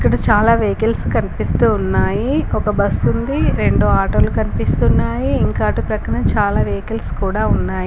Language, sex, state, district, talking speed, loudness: Telugu, female, Telangana, Komaram Bheem, 130 wpm, -17 LUFS